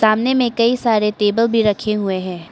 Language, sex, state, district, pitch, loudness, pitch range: Hindi, male, Arunachal Pradesh, Papum Pare, 215 Hz, -17 LUFS, 205-230 Hz